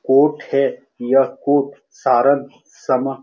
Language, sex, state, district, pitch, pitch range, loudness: Hindi, male, Bihar, Saran, 135 Hz, 135-140 Hz, -17 LUFS